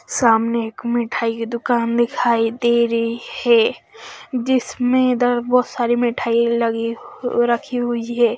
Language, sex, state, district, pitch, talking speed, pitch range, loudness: Hindi, female, Haryana, Charkhi Dadri, 235 Hz, 135 wpm, 230-245 Hz, -19 LUFS